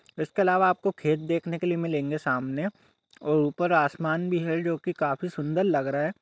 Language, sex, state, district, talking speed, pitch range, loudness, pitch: Hindi, male, Jharkhand, Sahebganj, 185 wpm, 150-180 Hz, -26 LUFS, 165 Hz